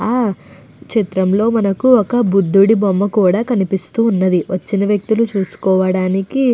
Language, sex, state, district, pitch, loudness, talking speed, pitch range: Telugu, female, Andhra Pradesh, Anantapur, 200 Hz, -15 LUFS, 120 wpm, 190-225 Hz